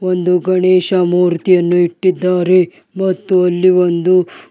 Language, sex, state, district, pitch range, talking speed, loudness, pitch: Kannada, male, Karnataka, Bidar, 180-185 Hz, 105 wpm, -13 LUFS, 180 Hz